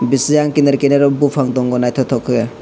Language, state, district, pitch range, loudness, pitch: Kokborok, Tripura, West Tripura, 125-140 Hz, -14 LUFS, 135 Hz